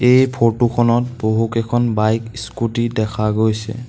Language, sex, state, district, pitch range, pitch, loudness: Assamese, male, Assam, Sonitpur, 110-120 Hz, 115 Hz, -17 LUFS